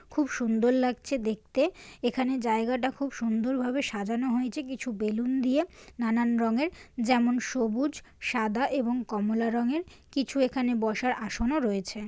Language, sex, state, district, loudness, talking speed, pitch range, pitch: Bengali, female, West Bengal, Jalpaiguri, -29 LUFS, 130 wpm, 230-265 Hz, 245 Hz